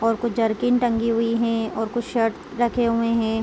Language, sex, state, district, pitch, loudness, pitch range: Hindi, female, Chhattisgarh, Korba, 230 Hz, -22 LUFS, 225-235 Hz